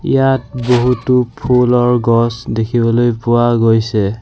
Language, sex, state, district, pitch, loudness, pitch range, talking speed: Assamese, male, Assam, Sonitpur, 120 Hz, -13 LUFS, 115-125 Hz, 100 wpm